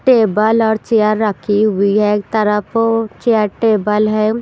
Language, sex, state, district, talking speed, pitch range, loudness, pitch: Hindi, female, Punjab, Pathankot, 150 wpm, 210-225 Hz, -14 LUFS, 215 Hz